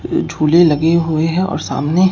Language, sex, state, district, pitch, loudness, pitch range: Hindi, male, Bihar, Katihar, 165 Hz, -15 LUFS, 155-185 Hz